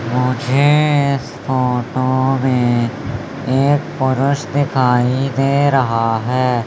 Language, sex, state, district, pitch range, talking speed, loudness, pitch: Hindi, male, Madhya Pradesh, Umaria, 125-140 Hz, 90 wpm, -16 LUFS, 130 Hz